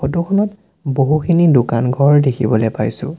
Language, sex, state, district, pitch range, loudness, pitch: Assamese, male, Assam, Sonitpur, 125-170 Hz, -15 LUFS, 140 Hz